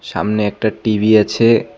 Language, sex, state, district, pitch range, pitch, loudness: Bengali, male, West Bengal, Cooch Behar, 105-110 Hz, 110 Hz, -15 LUFS